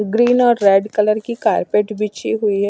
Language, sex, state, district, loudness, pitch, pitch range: Hindi, female, Himachal Pradesh, Shimla, -16 LUFS, 210 Hz, 205-230 Hz